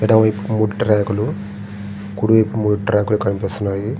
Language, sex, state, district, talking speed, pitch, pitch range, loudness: Telugu, male, Andhra Pradesh, Srikakulam, 165 wpm, 105 Hz, 100-110 Hz, -18 LUFS